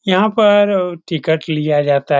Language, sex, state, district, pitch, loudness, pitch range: Hindi, male, Bihar, Saran, 170 Hz, -15 LUFS, 150-200 Hz